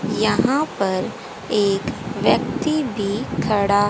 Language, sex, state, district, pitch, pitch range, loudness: Hindi, female, Haryana, Jhajjar, 210 Hz, 200-250 Hz, -21 LUFS